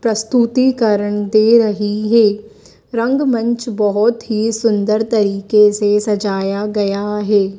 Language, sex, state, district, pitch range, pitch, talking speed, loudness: Hindi, female, Madhya Pradesh, Dhar, 205-230 Hz, 215 Hz, 105 wpm, -15 LUFS